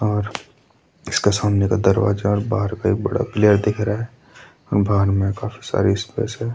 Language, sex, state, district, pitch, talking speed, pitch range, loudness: Hindi, male, Uttarakhand, Tehri Garhwal, 105 Hz, 165 wpm, 100-110 Hz, -20 LUFS